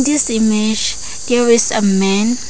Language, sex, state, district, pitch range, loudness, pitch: English, female, Arunachal Pradesh, Lower Dibang Valley, 215-240 Hz, -14 LUFS, 225 Hz